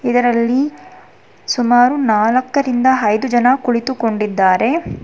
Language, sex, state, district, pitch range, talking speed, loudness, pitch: Kannada, female, Karnataka, Bangalore, 230-260 Hz, 70 wpm, -15 LUFS, 245 Hz